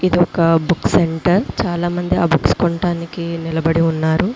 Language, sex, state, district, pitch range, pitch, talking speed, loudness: Telugu, female, Andhra Pradesh, Visakhapatnam, 165-175 Hz, 170 Hz, 180 wpm, -17 LUFS